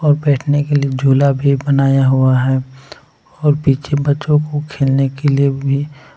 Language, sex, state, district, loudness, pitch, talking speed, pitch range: Hindi, male, Jharkhand, Palamu, -15 LUFS, 140 Hz, 175 wpm, 135-145 Hz